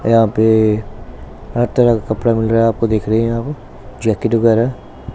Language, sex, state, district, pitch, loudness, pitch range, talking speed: Hindi, male, Punjab, Pathankot, 115 Hz, -15 LUFS, 110-115 Hz, 200 wpm